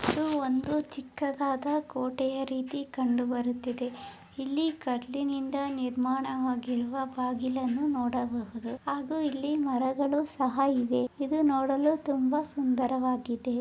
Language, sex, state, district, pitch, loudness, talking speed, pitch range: Kannada, female, Karnataka, Raichur, 265 Hz, -30 LUFS, 90 wpm, 250-280 Hz